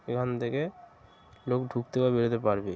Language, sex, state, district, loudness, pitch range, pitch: Bengali, male, West Bengal, Kolkata, -29 LUFS, 105-125 Hz, 120 Hz